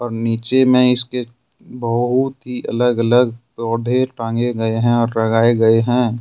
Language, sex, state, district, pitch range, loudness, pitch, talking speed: Hindi, male, Jharkhand, Ranchi, 115-125 Hz, -17 LUFS, 120 Hz, 155 wpm